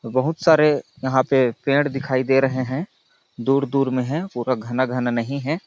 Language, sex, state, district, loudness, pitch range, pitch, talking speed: Hindi, male, Chhattisgarh, Balrampur, -21 LUFS, 130-140 Hz, 135 Hz, 190 wpm